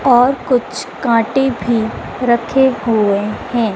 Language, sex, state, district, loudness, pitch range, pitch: Hindi, female, Madhya Pradesh, Dhar, -15 LUFS, 225-260 Hz, 240 Hz